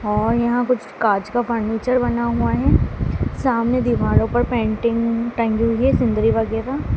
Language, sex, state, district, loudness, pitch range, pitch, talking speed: Hindi, female, Madhya Pradesh, Dhar, -19 LUFS, 225-240 Hz, 230 Hz, 155 wpm